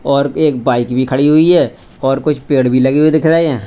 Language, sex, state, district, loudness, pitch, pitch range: Hindi, male, Uttar Pradesh, Lalitpur, -12 LUFS, 140 Hz, 130-155 Hz